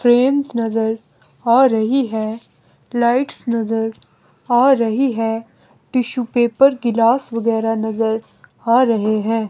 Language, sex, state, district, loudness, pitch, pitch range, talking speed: Hindi, female, Himachal Pradesh, Shimla, -17 LUFS, 230 Hz, 225-250 Hz, 115 wpm